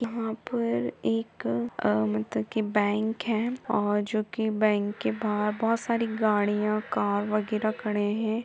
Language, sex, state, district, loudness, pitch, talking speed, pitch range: Hindi, female, Uttar Pradesh, Etah, -28 LUFS, 215 Hz, 120 wpm, 205-220 Hz